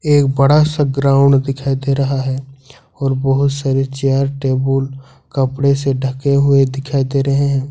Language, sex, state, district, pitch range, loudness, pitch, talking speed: Hindi, male, Jharkhand, Ranchi, 135-140 Hz, -15 LUFS, 135 Hz, 165 wpm